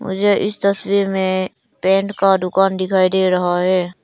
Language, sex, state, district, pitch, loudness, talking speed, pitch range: Hindi, female, Arunachal Pradesh, Lower Dibang Valley, 190 Hz, -17 LUFS, 165 wpm, 185-195 Hz